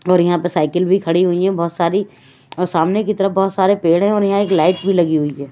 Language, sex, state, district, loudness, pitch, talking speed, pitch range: Hindi, female, Chhattisgarh, Raipur, -16 LUFS, 180 Hz, 285 wpm, 170-195 Hz